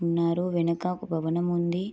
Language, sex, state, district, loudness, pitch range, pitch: Telugu, female, Andhra Pradesh, Srikakulam, -27 LUFS, 170-180 Hz, 170 Hz